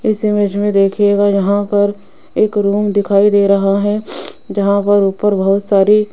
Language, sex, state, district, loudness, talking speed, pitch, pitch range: Hindi, female, Rajasthan, Jaipur, -13 LUFS, 175 wpm, 205 Hz, 200-205 Hz